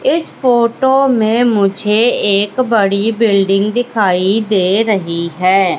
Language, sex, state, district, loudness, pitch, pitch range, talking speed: Hindi, female, Madhya Pradesh, Katni, -13 LUFS, 210 Hz, 195-240 Hz, 115 wpm